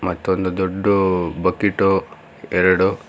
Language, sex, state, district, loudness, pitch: Kannada, male, Karnataka, Bangalore, -19 LUFS, 95 Hz